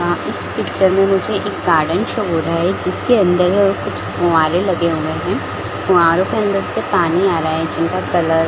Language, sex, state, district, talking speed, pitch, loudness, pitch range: Hindi, female, Chhattisgarh, Bilaspur, 205 wpm, 175 Hz, -16 LUFS, 160-190 Hz